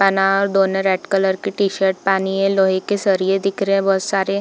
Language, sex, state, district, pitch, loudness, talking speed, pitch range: Hindi, female, Bihar, Darbhanga, 195 Hz, -18 LUFS, 230 wpm, 190-195 Hz